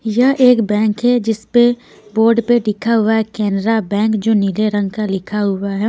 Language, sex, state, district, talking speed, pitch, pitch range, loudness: Hindi, female, Punjab, Pathankot, 205 wpm, 220 Hz, 205-230 Hz, -15 LUFS